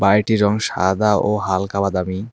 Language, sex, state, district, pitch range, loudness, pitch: Bengali, male, West Bengal, Cooch Behar, 95-105 Hz, -18 LUFS, 100 Hz